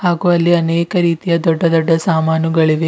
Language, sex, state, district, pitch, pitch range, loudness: Kannada, female, Karnataka, Bidar, 165 Hz, 165-170 Hz, -14 LUFS